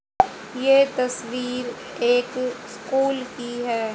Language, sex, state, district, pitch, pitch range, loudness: Hindi, female, Haryana, Jhajjar, 250 Hz, 240-255 Hz, -23 LUFS